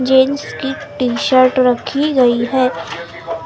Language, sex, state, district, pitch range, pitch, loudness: Hindi, female, Maharashtra, Gondia, 235-265 Hz, 255 Hz, -15 LUFS